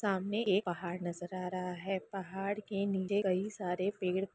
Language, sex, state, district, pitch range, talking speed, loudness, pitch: Hindi, female, Bihar, Lakhisarai, 180-200 Hz, 195 wpm, -36 LUFS, 195 Hz